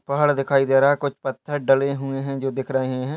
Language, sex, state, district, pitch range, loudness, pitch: Hindi, male, Chhattisgarh, Bastar, 135-140 Hz, -21 LUFS, 135 Hz